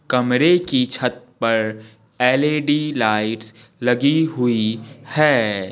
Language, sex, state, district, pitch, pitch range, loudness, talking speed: Hindi, male, Bihar, Patna, 125 Hz, 110-140 Hz, -19 LUFS, 95 wpm